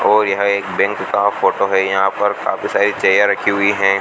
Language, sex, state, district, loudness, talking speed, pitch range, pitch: Hindi, male, Rajasthan, Bikaner, -16 LUFS, 225 wpm, 95-100 Hz, 100 Hz